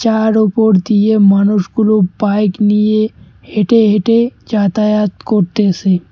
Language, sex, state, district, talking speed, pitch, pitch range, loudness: Bengali, male, West Bengal, Cooch Behar, 100 wpm, 210 Hz, 205-220 Hz, -12 LUFS